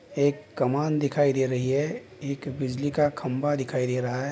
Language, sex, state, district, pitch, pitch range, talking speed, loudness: Hindi, male, Bihar, Darbhanga, 140 Hz, 130-145 Hz, 195 wpm, -27 LUFS